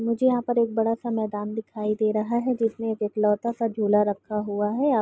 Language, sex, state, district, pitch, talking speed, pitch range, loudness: Hindi, female, Uttar Pradesh, Deoria, 220 Hz, 250 wpm, 210-235 Hz, -25 LUFS